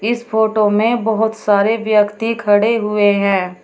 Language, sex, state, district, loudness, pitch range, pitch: Hindi, female, Uttar Pradesh, Shamli, -15 LUFS, 205-225 Hz, 220 Hz